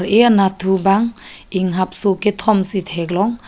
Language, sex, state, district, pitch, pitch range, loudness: Karbi, female, Assam, Karbi Anglong, 195 Hz, 185-210 Hz, -16 LUFS